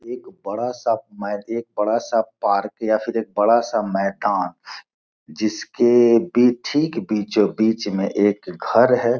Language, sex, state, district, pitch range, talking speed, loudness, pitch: Hindi, male, Bihar, Gopalganj, 105-120 Hz, 145 wpm, -20 LUFS, 115 Hz